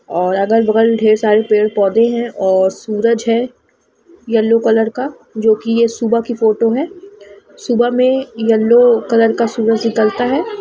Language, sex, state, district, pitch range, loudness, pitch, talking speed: Hindi, female, Bihar, Lakhisarai, 220-240 Hz, -14 LUFS, 230 Hz, 155 wpm